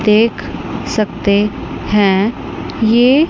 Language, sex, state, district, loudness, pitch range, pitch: Hindi, female, Chandigarh, Chandigarh, -15 LUFS, 205-235 Hz, 215 Hz